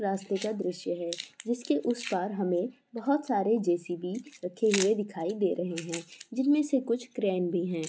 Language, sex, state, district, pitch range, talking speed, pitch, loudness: Hindi, female, Andhra Pradesh, Visakhapatnam, 180-240 Hz, 175 wpm, 200 Hz, -30 LUFS